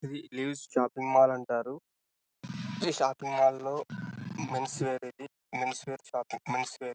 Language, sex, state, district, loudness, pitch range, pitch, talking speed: Telugu, male, Telangana, Karimnagar, -31 LUFS, 125-140 Hz, 130 Hz, 130 wpm